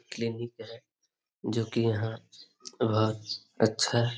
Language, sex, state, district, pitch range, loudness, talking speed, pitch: Hindi, male, Bihar, Jamui, 110-120 Hz, -30 LUFS, 115 wpm, 115 Hz